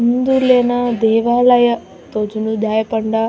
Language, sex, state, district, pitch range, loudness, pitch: Tulu, female, Karnataka, Dakshina Kannada, 220-245 Hz, -15 LUFS, 235 Hz